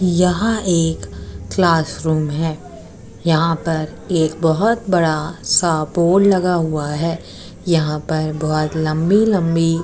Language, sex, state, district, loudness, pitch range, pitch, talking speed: Hindi, female, Uttar Pradesh, Etah, -17 LUFS, 155-175 Hz, 165 Hz, 115 wpm